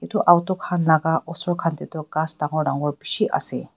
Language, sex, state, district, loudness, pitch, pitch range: Nagamese, female, Nagaland, Dimapur, -22 LUFS, 160 Hz, 155-175 Hz